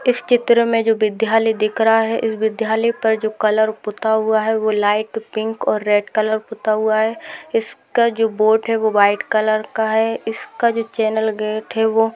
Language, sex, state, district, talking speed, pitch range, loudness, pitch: Hindi, female, Rajasthan, Churu, 200 wpm, 215-225 Hz, -18 LUFS, 220 Hz